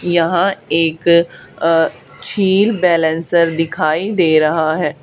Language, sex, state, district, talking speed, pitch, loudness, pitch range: Hindi, female, Haryana, Charkhi Dadri, 105 wpm, 165 Hz, -15 LUFS, 160-175 Hz